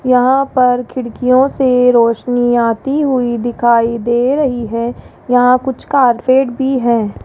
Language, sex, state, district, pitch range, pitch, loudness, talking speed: Hindi, female, Rajasthan, Jaipur, 235-260 Hz, 250 Hz, -13 LUFS, 130 wpm